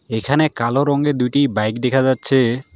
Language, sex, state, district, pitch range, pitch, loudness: Bengali, male, West Bengal, Alipurduar, 120-140 Hz, 130 Hz, -17 LUFS